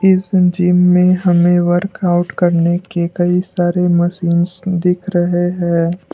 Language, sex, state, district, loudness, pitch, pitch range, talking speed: Hindi, male, Assam, Kamrup Metropolitan, -14 LUFS, 175 Hz, 175-180 Hz, 135 wpm